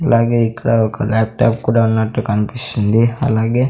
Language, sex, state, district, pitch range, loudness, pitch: Telugu, male, Andhra Pradesh, Sri Satya Sai, 110-120 Hz, -16 LUFS, 115 Hz